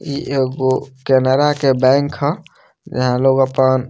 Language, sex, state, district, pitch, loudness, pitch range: Bhojpuri, male, Bihar, Muzaffarpur, 130 Hz, -16 LUFS, 130-135 Hz